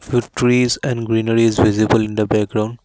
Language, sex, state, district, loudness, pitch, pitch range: English, male, Assam, Kamrup Metropolitan, -17 LUFS, 115 Hz, 110-120 Hz